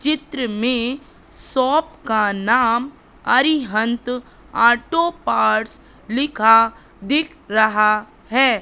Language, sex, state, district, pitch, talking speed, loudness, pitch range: Hindi, female, Madhya Pradesh, Katni, 245 Hz, 85 wpm, -18 LUFS, 220-285 Hz